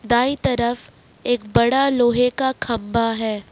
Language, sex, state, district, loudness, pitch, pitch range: Hindi, male, Jharkhand, Ranchi, -19 LUFS, 240 Hz, 230-255 Hz